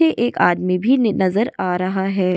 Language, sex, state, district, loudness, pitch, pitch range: Hindi, female, Goa, North and South Goa, -18 LUFS, 190 Hz, 185-235 Hz